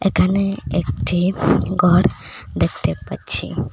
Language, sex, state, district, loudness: Bengali, female, Assam, Hailakandi, -18 LUFS